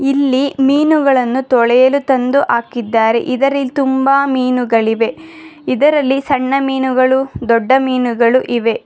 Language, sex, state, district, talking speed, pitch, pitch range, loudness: Kannada, female, Karnataka, Bangalore, 100 wpm, 265 Hz, 245-275 Hz, -13 LUFS